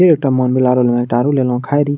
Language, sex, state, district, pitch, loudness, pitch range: Maithili, male, Bihar, Madhepura, 130 Hz, -14 LUFS, 125-145 Hz